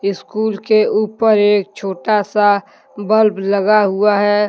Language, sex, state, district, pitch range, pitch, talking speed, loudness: Hindi, male, Jharkhand, Deoghar, 200-215 Hz, 210 Hz, 135 wpm, -15 LUFS